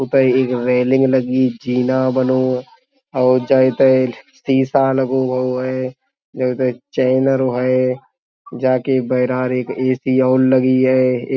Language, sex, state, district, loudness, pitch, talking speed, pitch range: Hindi, male, Uttar Pradesh, Budaun, -16 LUFS, 130 Hz, 130 wpm, 125-130 Hz